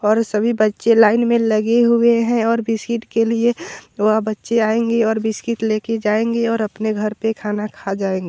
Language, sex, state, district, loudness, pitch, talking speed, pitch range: Hindi, male, Bihar, Vaishali, -18 LUFS, 225 Hz, 195 wpm, 215-230 Hz